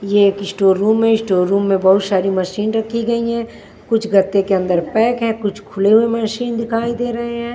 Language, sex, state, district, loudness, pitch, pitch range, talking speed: Hindi, female, Maharashtra, Washim, -16 LUFS, 215 Hz, 195-230 Hz, 225 wpm